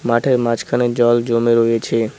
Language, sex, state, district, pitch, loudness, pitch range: Bengali, male, West Bengal, Cooch Behar, 115 Hz, -16 LUFS, 115-120 Hz